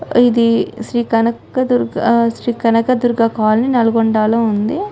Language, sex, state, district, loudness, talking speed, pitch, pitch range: Telugu, female, Telangana, Nalgonda, -15 LUFS, 145 wpm, 230 Hz, 225-245 Hz